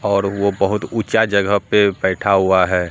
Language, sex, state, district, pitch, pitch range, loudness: Hindi, male, Bihar, Katihar, 100 Hz, 95-100 Hz, -17 LUFS